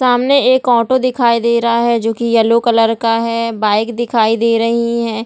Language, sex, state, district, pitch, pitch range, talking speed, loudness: Hindi, female, Bihar, Jahanabad, 235 Hz, 230-240 Hz, 215 wpm, -13 LUFS